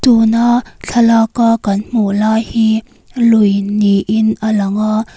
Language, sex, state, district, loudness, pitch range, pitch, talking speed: Mizo, female, Mizoram, Aizawl, -13 LUFS, 210-230 Hz, 220 Hz, 130 wpm